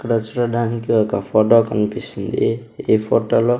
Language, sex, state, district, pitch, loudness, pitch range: Telugu, male, Andhra Pradesh, Sri Satya Sai, 115 Hz, -18 LUFS, 110-115 Hz